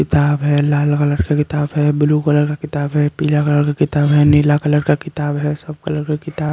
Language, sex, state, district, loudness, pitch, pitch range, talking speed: Hindi, male, Chandigarh, Chandigarh, -16 LUFS, 150 Hz, 145-150 Hz, 250 wpm